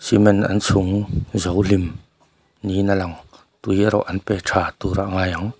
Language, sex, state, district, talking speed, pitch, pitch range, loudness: Mizo, male, Mizoram, Aizawl, 170 wpm, 100 Hz, 95-105 Hz, -20 LUFS